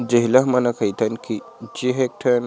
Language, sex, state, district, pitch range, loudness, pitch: Chhattisgarhi, male, Chhattisgarh, Sarguja, 120-125 Hz, -20 LUFS, 120 Hz